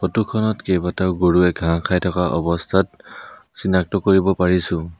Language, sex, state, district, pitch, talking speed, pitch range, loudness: Assamese, male, Assam, Sonitpur, 90 Hz, 120 wpm, 90-95 Hz, -19 LUFS